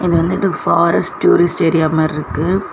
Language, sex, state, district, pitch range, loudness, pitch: Tamil, female, Tamil Nadu, Chennai, 155-185 Hz, -15 LUFS, 165 Hz